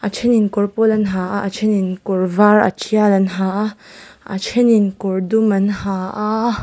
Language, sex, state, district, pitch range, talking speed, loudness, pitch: Mizo, female, Mizoram, Aizawl, 195-215 Hz, 235 wpm, -17 LUFS, 205 Hz